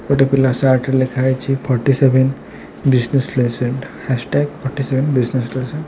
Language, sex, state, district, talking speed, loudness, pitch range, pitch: Odia, male, Odisha, Khordha, 125 wpm, -17 LUFS, 125-135 Hz, 130 Hz